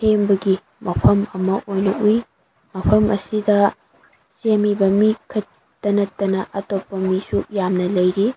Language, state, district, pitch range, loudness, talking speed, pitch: Manipuri, Manipur, Imphal West, 190-210 Hz, -19 LUFS, 100 wpm, 200 Hz